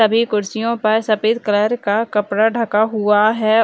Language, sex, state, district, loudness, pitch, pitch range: Hindi, female, Bihar, Muzaffarpur, -17 LUFS, 220 Hz, 210-225 Hz